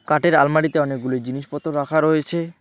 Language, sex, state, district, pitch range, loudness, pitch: Bengali, male, West Bengal, Alipurduar, 140-155 Hz, -20 LUFS, 150 Hz